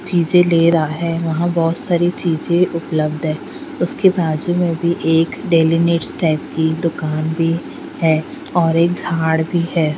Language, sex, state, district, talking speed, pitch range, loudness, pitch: Hindi, female, Bihar, Patna, 155 wpm, 160-170 Hz, -17 LUFS, 165 Hz